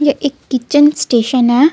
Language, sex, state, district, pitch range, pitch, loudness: Hindi, female, Jharkhand, Ranchi, 250-290 Hz, 280 Hz, -13 LUFS